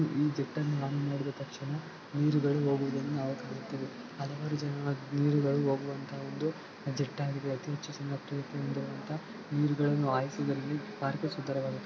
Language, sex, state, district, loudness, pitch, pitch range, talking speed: Kannada, male, Karnataka, Belgaum, -34 LUFS, 140 Hz, 140-145 Hz, 115 wpm